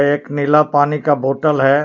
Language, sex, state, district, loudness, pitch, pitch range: Hindi, male, Jharkhand, Palamu, -15 LUFS, 145 Hz, 140-150 Hz